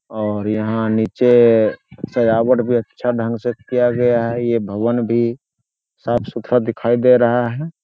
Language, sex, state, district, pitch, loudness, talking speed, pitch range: Hindi, male, Bihar, Jamui, 120 Hz, -17 LUFS, 155 wpm, 115-120 Hz